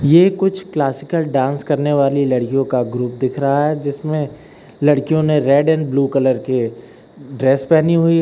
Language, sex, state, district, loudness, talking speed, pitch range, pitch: Hindi, male, Uttar Pradesh, Lucknow, -16 LUFS, 175 wpm, 135-155 Hz, 140 Hz